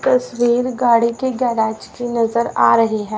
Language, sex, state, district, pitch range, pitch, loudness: Hindi, female, Haryana, Rohtak, 230-250 Hz, 240 Hz, -17 LUFS